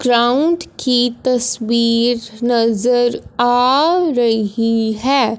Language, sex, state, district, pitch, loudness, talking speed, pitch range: Hindi, female, Punjab, Fazilka, 240 Hz, -15 LUFS, 80 wpm, 230-250 Hz